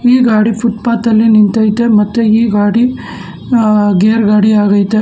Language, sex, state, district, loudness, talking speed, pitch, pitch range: Kannada, male, Karnataka, Bangalore, -10 LUFS, 130 wpm, 220 Hz, 210-230 Hz